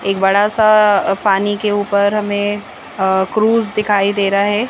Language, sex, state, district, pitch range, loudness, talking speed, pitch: Hindi, female, Madhya Pradesh, Bhopal, 195-210 Hz, -14 LUFS, 140 wpm, 205 Hz